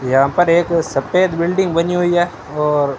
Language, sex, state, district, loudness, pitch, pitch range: Hindi, male, Rajasthan, Bikaner, -16 LUFS, 170 Hz, 150-175 Hz